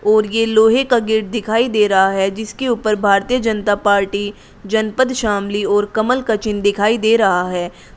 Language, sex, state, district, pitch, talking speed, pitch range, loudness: Hindi, female, Uttar Pradesh, Shamli, 215 Hz, 180 wpm, 205-225 Hz, -16 LUFS